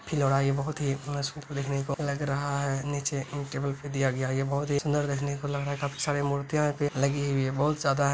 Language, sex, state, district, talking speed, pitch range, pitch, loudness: Hindi, male, Bihar, Gaya, 245 wpm, 140-145 Hz, 140 Hz, -29 LUFS